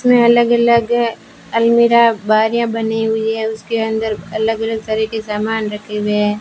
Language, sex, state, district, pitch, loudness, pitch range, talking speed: Hindi, female, Rajasthan, Bikaner, 225 Hz, -16 LUFS, 220-235 Hz, 170 wpm